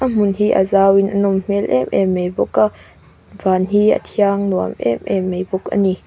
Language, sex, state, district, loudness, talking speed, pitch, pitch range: Mizo, female, Mizoram, Aizawl, -16 LUFS, 235 wpm, 190 Hz, 180-200 Hz